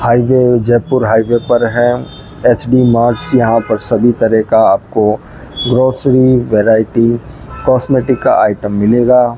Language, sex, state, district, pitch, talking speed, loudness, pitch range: Hindi, male, Rajasthan, Bikaner, 120 Hz, 120 wpm, -11 LUFS, 115-125 Hz